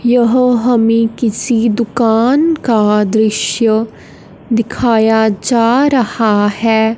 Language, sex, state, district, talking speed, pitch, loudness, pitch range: Hindi, female, Punjab, Fazilka, 85 wpm, 230 Hz, -12 LUFS, 220-245 Hz